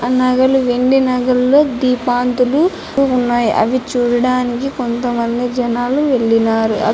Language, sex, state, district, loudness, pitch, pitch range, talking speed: Telugu, female, Andhra Pradesh, Anantapur, -15 LUFS, 250 Hz, 240-255 Hz, 105 wpm